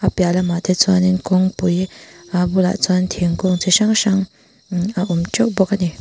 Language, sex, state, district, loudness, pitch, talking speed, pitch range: Mizo, female, Mizoram, Aizawl, -17 LUFS, 185 Hz, 180 wpm, 180-190 Hz